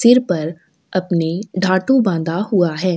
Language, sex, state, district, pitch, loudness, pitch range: Hindi, female, Chhattisgarh, Sukma, 185 Hz, -17 LUFS, 170-200 Hz